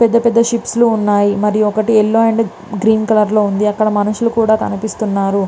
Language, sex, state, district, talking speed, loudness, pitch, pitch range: Telugu, female, Andhra Pradesh, Visakhapatnam, 195 wpm, -14 LUFS, 215 Hz, 210-225 Hz